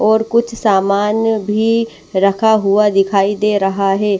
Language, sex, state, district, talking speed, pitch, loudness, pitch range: Hindi, male, Odisha, Nuapada, 145 wpm, 210 Hz, -14 LUFS, 195-220 Hz